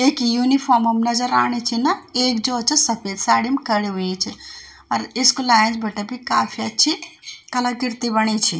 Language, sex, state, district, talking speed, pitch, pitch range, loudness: Garhwali, female, Uttarakhand, Tehri Garhwal, 175 wpm, 240 Hz, 220-260 Hz, -19 LUFS